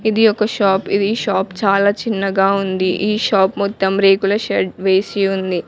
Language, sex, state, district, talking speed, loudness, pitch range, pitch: Telugu, female, Telangana, Mahabubabad, 160 wpm, -16 LUFS, 190-205 Hz, 195 Hz